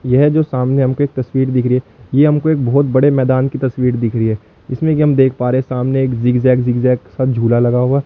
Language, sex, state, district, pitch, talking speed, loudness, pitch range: Hindi, male, Chandigarh, Chandigarh, 130 Hz, 275 wpm, -14 LUFS, 125-135 Hz